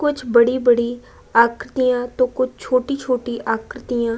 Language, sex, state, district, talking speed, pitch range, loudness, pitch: Hindi, female, Uttar Pradesh, Budaun, 130 wpm, 235-255 Hz, -19 LUFS, 245 Hz